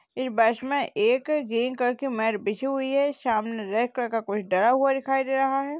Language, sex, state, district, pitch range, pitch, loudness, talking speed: Hindi, female, Uttar Pradesh, Jalaun, 225-275 Hz, 255 Hz, -25 LUFS, 250 wpm